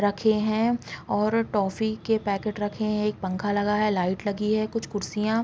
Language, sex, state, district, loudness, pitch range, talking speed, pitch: Hindi, female, Bihar, Vaishali, -26 LUFS, 205-220 Hz, 200 wpm, 210 Hz